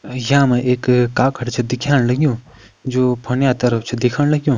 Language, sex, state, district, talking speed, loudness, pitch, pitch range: Kumaoni, male, Uttarakhand, Uttarkashi, 155 wpm, -17 LUFS, 125 Hz, 125-135 Hz